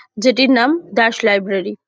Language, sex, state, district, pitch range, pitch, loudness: Bengali, female, West Bengal, Jhargram, 200-255 Hz, 230 Hz, -15 LUFS